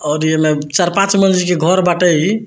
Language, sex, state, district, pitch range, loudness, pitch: Bhojpuri, male, Bihar, Muzaffarpur, 155-190 Hz, -13 LUFS, 175 Hz